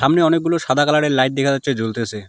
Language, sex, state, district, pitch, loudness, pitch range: Bengali, male, West Bengal, Alipurduar, 140 Hz, -17 LUFS, 130-160 Hz